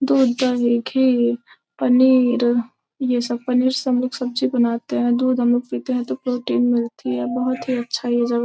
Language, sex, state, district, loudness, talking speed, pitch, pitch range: Hindi, female, Bihar, Gopalganj, -20 LUFS, 175 wpm, 245 Hz, 235-255 Hz